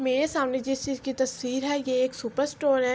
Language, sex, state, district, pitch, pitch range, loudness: Urdu, female, Andhra Pradesh, Anantapur, 265 Hz, 255-275 Hz, -27 LUFS